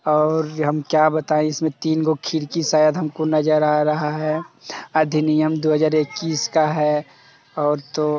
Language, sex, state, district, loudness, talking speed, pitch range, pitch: Hindi, male, Bihar, Jamui, -20 LUFS, 175 wpm, 150-155 Hz, 155 Hz